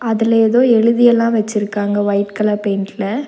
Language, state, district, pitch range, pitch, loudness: Tamil, Tamil Nadu, Nilgiris, 205-230 Hz, 220 Hz, -15 LUFS